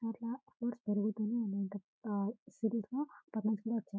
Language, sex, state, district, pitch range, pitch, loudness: Telugu, female, Telangana, Karimnagar, 210-230 Hz, 220 Hz, -38 LUFS